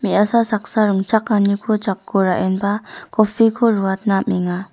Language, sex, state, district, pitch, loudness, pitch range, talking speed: Garo, female, Meghalaya, North Garo Hills, 205 Hz, -18 LUFS, 195-220 Hz, 100 wpm